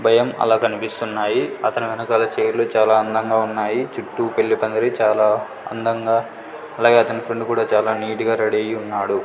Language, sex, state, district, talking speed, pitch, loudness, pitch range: Telugu, male, Andhra Pradesh, Sri Satya Sai, 160 wpm, 115 Hz, -19 LUFS, 110-115 Hz